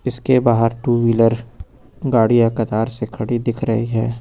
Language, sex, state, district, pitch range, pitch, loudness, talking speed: Hindi, male, Uttar Pradesh, Lucknow, 115-120 Hz, 115 Hz, -18 LUFS, 155 wpm